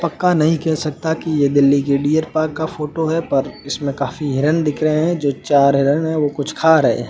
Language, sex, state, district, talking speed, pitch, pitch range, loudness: Hindi, male, Delhi, New Delhi, 245 wpm, 155 Hz, 140-160 Hz, -17 LUFS